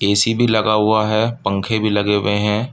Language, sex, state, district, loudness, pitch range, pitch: Hindi, male, Uttar Pradesh, Budaun, -17 LUFS, 105-110 Hz, 110 Hz